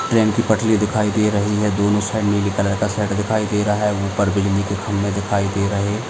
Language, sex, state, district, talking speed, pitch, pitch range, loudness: Hindi, male, Maharashtra, Aurangabad, 245 wpm, 105 Hz, 100-105 Hz, -19 LUFS